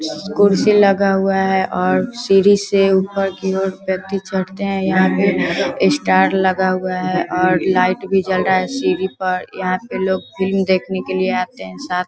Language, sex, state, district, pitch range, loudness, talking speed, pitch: Hindi, female, Bihar, Vaishali, 185-195 Hz, -17 LUFS, 185 wpm, 190 Hz